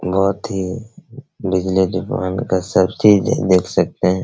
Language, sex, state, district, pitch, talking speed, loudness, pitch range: Hindi, male, Bihar, Araria, 95 Hz, 155 wpm, -17 LUFS, 95-115 Hz